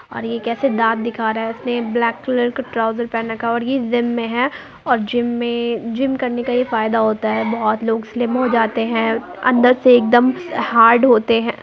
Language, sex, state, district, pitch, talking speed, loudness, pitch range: Hindi, female, Bihar, Muzaffarpur, 235 Hz, 215 wpm, -17 LUFS, 225-245 Hz